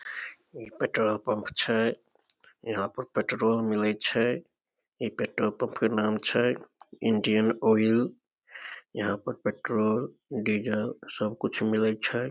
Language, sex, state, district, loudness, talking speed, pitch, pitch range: Maithili, male, Bihar, Samastipur, -28 LUFS, 120 wpm, 110 Hz, 110-115 Hz